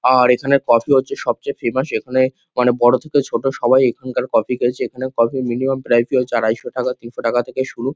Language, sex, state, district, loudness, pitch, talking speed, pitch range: Bengali, male, West Bengal, Kolkata, -18 LUFS, 130 Hz, 210 wpm, 120-135 Hz